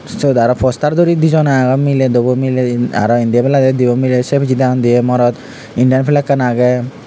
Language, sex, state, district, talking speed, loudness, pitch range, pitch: Chakma, male, Tripura, Unakoti, 185 wpm, -13 LUFS, 125-135 Hz, 130 Hz